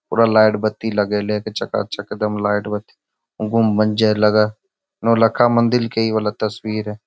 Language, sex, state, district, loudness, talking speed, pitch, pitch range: Magahi, male, Bihar, Gaya, -18 LUFS, 180 wpm, 110 Hz, 105-115 Hz